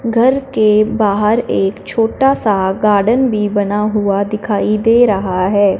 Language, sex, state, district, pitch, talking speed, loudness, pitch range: Hindi, female, Punjab, Fazilka, 210 Hz, 145 wpm, -14 LUFS, 200-230 Hz